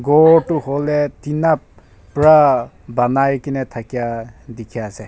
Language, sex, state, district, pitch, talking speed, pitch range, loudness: Nagamese, male, Nagaland, Kohima, 135 Hz, 120 wpm, 120-150 Hz, -16 LUFS